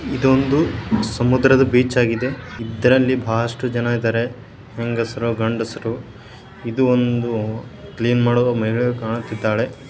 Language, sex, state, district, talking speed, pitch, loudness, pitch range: Kannada, male, Karnataka, Bijapur, 85 wpm, 120 Hz, -19 LUFS, 115-125 Hz